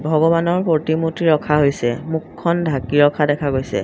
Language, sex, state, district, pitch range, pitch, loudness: Assamese, female, Assam, Sonitpur, 145-165 Hz, 155 Hz, -18 LUFS